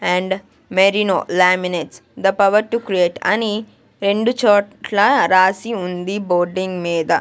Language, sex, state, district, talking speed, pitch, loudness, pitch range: Telugu, female, Andhra Pradesh, Sri Satya Sai, 125 wpm, 190 Hz, -17 LUFS, 180-210 Hz